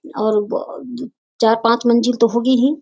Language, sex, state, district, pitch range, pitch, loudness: Hindi, female, Bihar, Sitamarhi, 230-255 Hz, 235 Hz, -16 LUFS